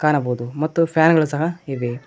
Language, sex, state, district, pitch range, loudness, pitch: Kannada, male, Karnataka, Koppal, 130-160 Hz, -19 LUFS, 150 Hz